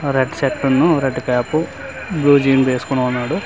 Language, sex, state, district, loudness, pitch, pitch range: Telugu, male, Andhra Pradesh, Manyam, -17 LUFS, 135 Hz, 125-145 Hz